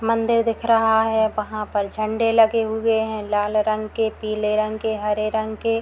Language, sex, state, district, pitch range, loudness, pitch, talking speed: Hindi, female, Bihar, Madhepura, 215-225 Hz, -21 LUFS, 220 Hz, 195 wpm